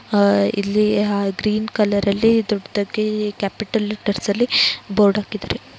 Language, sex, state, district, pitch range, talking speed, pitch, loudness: Kannada, female, Karnataka, Raichur, 200-215 Hz, 115 wpm, 210 Hz, -19 LUFS